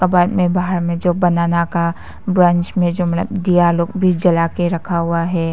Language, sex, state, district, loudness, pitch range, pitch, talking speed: Hindi, female, Arunachal Pradesh, Papum Pare, -16 LUFS, 170-180 Hz, 175 Hz, 215 wpm